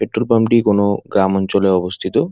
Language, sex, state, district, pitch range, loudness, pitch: Bengali, male, West Bengal, Dakshin Dinajpur, 95-110 Hz, -16 LUFS, 100 Hz